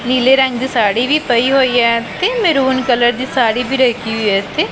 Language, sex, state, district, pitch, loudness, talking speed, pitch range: Punjabi, female, Punjab, Pathankot, 250 Hz, -14 LUFS, 215 wpm, 235-265 Hz